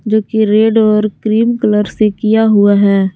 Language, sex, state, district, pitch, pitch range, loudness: Hindi, female, Jharkhand, Garhwa, 215 Hz, 210-220 Hz, -11 LUFS